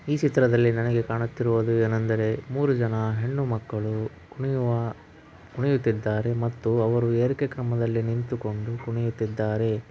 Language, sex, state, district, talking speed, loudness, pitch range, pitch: Kannada, male, Karnataka, Raichur, 110 wpm, -26 LUFS, 110-120 Hz, 115 Hz